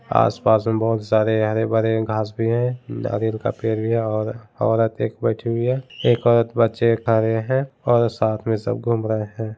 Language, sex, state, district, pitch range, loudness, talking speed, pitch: Hindi, male, Bihar, Muzaffarpur, 110-115 Hz, -20 LUFS, 195 wpm, 115 Hz